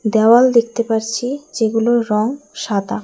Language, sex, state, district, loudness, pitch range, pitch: Bengali, female, West Bengal, Alipurduar, -16 LUFS, 220-245 Hz, 230 Hz